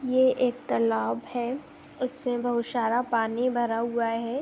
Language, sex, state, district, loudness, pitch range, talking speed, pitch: Hindi, female, Bihar, Saharsa, -27 LUFS, 230-255 Hz, 160 wpm, 240 Hz